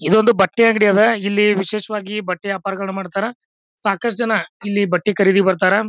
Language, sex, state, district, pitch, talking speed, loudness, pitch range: Kannada, male, Karnataka, Bijapur, 205 Hz, 155 wpm, -17 LUFS, 195-220 Hz